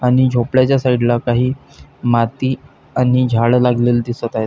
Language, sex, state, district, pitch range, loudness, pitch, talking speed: Marathi, male, Maharashtra, Pune, 120-130 Hz, -16 LUFS, 125 Hz, 135 wpm